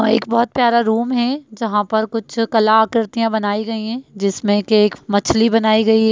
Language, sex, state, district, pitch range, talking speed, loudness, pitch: Hindi, female, Bihar, Darbhanga, 215-230 Hz, 195 wpm, -17 LUFS, 220 Hz